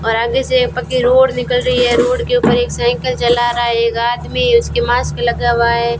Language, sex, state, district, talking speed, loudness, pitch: Hindi, female, Rajasthan, Bikaner, 230 wpm, -14 LUFS, 240 Hz